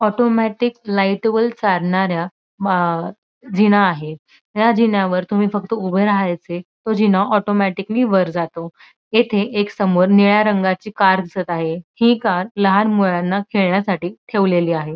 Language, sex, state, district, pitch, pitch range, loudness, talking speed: Marathi, female, Maharashtra, Dhule, 200 Hz, 180-215 Hz, -17 LUFS, 130 wpm